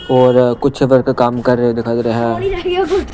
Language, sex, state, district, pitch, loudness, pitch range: Hindi, male, Punjab, Pathankot, 125 Hz, -14 LUFS, 120-140 Hz